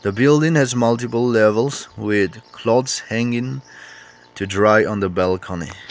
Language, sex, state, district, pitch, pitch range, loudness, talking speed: English, male, Nagaland, Kohima, 110 Hz, 100-120 Hz, -18 LUFS, 120 wpm